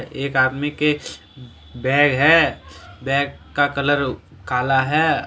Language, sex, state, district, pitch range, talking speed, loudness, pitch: Hindi, male, Jharkhand, Deoghar, 125-145 Hz, 115 wpm, -19 LUFS, 135 Hz